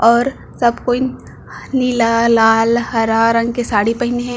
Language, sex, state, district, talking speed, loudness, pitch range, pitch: Chhattisgarhi, female, Chhattisgarh, Bilaspur, 150 wpm, -15 LUFS, 230-245 Hz, 235 Hz